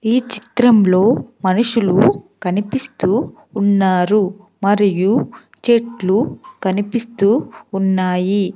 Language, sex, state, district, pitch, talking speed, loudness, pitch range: Telugu, female, Andhra Pradesh, Sri Satya Sai, 205 Hz, 65 wpm, -16 LUFS, 190-235 Hz